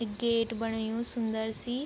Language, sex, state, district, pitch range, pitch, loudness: Garhwali, female, Uttarakhand, Tehri Garhwal, 220-235 Hz, 230 Hz, -32 LUFS